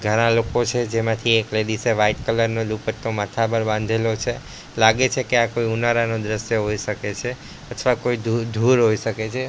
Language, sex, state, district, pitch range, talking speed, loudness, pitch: Gujarati, male, Gujarat, Gandhinagar, 110-120 Hz, 195 wpm, -21 LUFS, 115 Hz